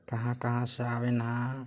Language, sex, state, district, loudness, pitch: Chhattisgarhi, male, Chhattisgarh, Jashpur, -31 LUFS, 120 Hz